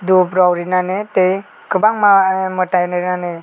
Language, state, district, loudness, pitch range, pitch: Kokborok, Tripura, West Tripura, -15 LUFS, 180-190 Hz, 185 Hz